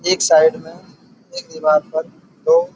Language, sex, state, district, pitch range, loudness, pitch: Hindi, male, Uttar Pradesh, Budaun, 160-240 Hz, -16 LUFS, 185 Hz